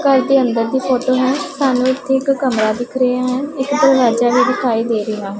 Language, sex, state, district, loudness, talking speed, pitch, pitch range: Punjabi, female, Punjab, Pathankot, -16 LUFS, 220 wpm, 255 Hz, 240-270 Hz